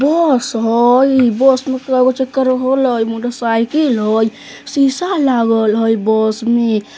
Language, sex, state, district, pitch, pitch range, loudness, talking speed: Bajjika, female, Bihar, Vaishali, 245 Hz, 225-265 Hz, -14 LUFS, 145 wpm